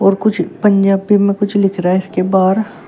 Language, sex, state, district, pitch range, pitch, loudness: Hindi, female, Uttar Pradesh, Shamli, 190-205 Hz, 195 Hz, -14 LUFS